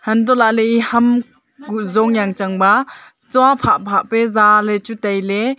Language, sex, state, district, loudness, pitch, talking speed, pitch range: Wancho, female, Arunachal Pradesh, Longding, -15 LUFS, 225 Hz, 140 wpm, 210-245 Hz